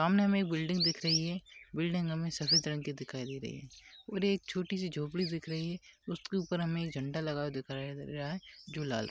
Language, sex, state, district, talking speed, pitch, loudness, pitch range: Hindi, male, Maharashtra, Aurangabad, 230 wpm, 165 Hz, -34 LUFS, 145-180 Hz